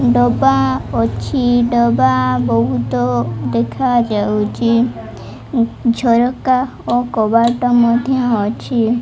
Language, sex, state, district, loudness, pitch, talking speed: Odia, female, Odisha, Malkangiri, -15 LUFS, 225 Hz, 65 wpm